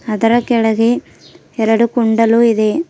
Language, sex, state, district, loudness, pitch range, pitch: Kannada, female, Karnataka, Bidar, -14 LUFS, 225-235 Hz, 230 Hz